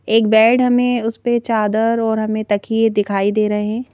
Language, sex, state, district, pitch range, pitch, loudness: Hindi, female, Madhya Pradesh, Bhopal, 210-230 Hz, 225 Hz, -16 LUFS